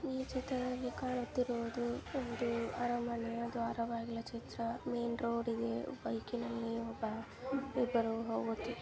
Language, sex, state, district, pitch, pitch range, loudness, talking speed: Kannada, female, Karnataka, Mysore, 235 Hz, 230-245 Hz, -39 LUFS, 100 wpm